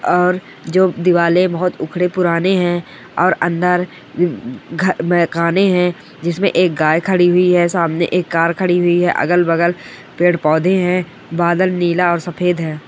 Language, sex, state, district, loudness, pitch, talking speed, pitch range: Hindi, male, Rajasthan, Churu, -15 LUFS, 175 Hz, 140 wpm, 170-180 Hz